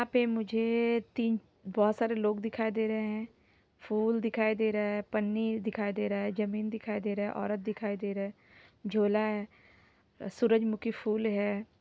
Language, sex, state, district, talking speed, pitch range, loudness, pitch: Hindi, female, Jharkhand, Sahebganj, 185 wpm, 210-225 Hz, -32 LUFS, 215 Hz